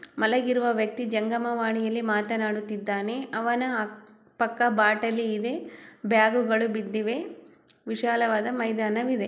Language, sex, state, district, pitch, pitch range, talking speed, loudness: Kannada, female, Karnataka, Chamarajanagar, 225 Hz, 215-240 Hz, 80 wpm, -26 LUFS